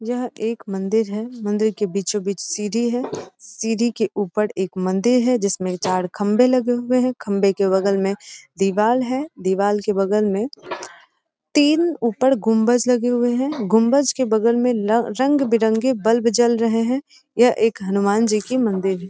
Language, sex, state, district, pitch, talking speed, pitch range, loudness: Hindi, female, Bihar, East Champaran, 225 Hz, 175 wpm, 205-245 Hz, -19 LUFS